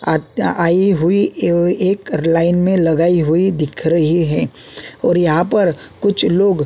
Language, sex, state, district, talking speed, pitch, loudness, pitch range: Hindi, male, Uttarakhand, Tehri Garhwal, 160 wpm, 175 Hz, -15 LUFS, 165-190 Hz